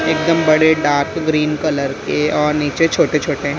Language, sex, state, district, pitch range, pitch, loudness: Hindi, female, Maharashtra, Mumbai Suburban, 145-160 Hz, 150 Hz, -16 LUFS